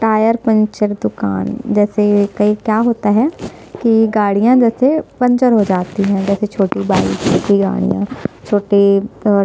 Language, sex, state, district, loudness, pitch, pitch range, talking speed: Hindi, female, Chhattisgarh, Sukma, -14 LUFS, 210 Hz, 200-225 Hz, 140 wpm